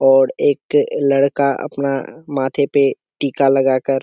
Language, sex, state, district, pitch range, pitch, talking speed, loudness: Hindi, male, Bihar, Kishanganj, 135-140 Hz, 140 Hz, 135 wpm, -17 LUFS